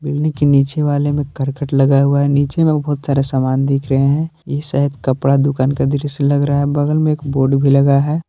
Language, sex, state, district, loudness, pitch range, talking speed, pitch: Hindi, male, Jharkhand, Palamu, -15 LUFS, 135-145 Hz, 240 wpm, 140 Hz